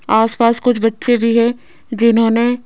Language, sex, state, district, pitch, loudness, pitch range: Hindi, female, Rajasthan, Jaipur, 230 Hz, -14 LUFS, 230-245 Hz